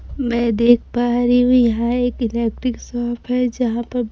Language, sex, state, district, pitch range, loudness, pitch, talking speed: Hindi, female, Bihar, Kaimur, 235-245 Hz, -18 LUFS, 240 Hz, 175 wpm